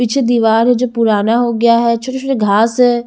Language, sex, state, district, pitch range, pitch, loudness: Hindi, female, Haryana, Charkhi Dadri, 225-245 Hz, 235 Hz, -13 LUFS